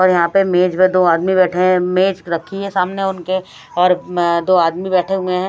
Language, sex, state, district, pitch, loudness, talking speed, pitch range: Hindi, female, Haryana, Rohtak, 185 Hz, -15 LUFS, 230 wpm, 180-185 Hz